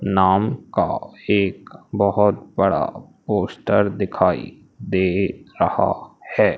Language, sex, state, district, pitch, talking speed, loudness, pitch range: Hindi, male, Madhya Pradesh, Umaria, 100 Hz, 90 wpm, -21 LUFS, 95-100 Hz